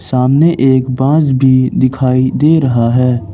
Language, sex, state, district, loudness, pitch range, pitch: Hindi, male, Jharkhand, Ranchi, -11 LUFS, 125-135 Hz, 130 Hz